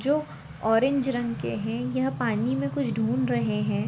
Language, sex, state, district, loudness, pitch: Hindi, female, Andhra Pradesh, Anantapur, -26 LUFS, 150 Hz